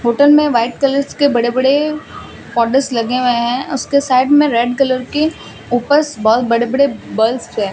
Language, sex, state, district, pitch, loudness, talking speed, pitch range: Hindi, female, Rajasthan, Bikaner, 255 Hz, -14 LUFS, 165 wpm, 235-280 Hz